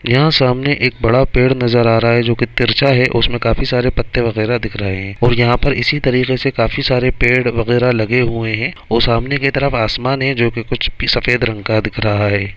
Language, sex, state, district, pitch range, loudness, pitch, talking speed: Hindi, male, Bihar, Bhagalpur, 115-130 Hz, -15 LUFS, 120 Hz, 240 wpm